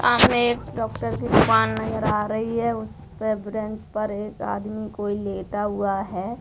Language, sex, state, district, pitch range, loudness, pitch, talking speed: Bhojpuri, female, Bihar, Saran, 195-215 Hz, -24 LUFS, 210 Hz, 170 wpm